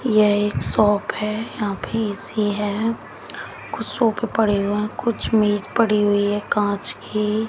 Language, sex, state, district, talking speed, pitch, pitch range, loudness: Hindi, female, Haryana, Jhajjar, 160 wpm, 210 Hz, 205-220 Hz, -21 LUFS